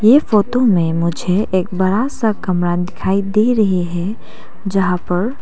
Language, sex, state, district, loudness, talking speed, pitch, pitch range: Hindi, female, Arunachal Pradesh, Papum Pare, -16 LUFS, 155 wpm, 195 Hz, 180-215 Hz